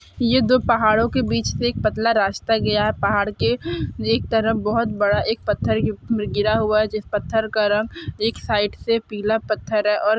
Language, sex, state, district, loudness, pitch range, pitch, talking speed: Hindi, female, Bihar, Saran, -20 LUFS, 210-230 Hz, 215 Hz, 205 wpm